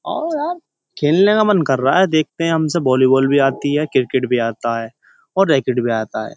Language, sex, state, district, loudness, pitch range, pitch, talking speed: Hindi, male, Uttar Pradesh, Jyotiba Phule Nagar, -17 LUFS, 130-185 Hz, 145 Hz, 215 wpm